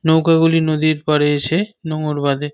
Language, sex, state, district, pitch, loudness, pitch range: Bengali, male, West Bengal, North 24 Parganas, 155 Hz, -17 LUFS, 150-165 Hz